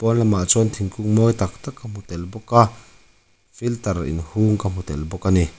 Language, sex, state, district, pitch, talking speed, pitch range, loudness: Mizo, male, Mizoram, Aizawl, 105 Hz, 205 wpm, 90-115 Hz, -20 LUFS